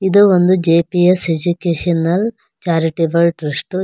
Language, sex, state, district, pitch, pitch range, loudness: Kannada, female, Karnataka, Bangalore, 175 Hz, 165-185 Hz, -15 LUFS